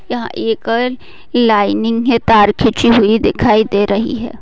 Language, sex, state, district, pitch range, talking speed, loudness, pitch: Hindi, female, Maharashtra, Pune, 215-240 Hz, 135 wpm, -13 LUFS, 225 Hz